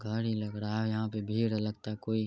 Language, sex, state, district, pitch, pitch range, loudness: Hindi, male, Bihar, Araria, 110 Hz, 105-110 Hz, -33 LUFS